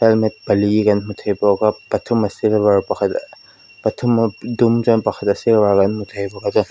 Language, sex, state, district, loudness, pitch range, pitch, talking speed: Mizo, female, Mizoram, Aizawl, -17 LUFS, 100-115 Hz, 105 Hz, 225 wpm